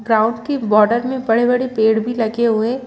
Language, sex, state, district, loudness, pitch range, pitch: Hindi, female, Chhattisgarh, Bilaspur, -16 LUFS, 220-245 Hz, 230 Hz